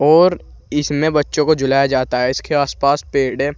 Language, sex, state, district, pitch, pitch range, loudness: Hindi, male, Uttar Pradesh, Saharanpur, 145 Hz, 135-150 Hz, -16 LUFS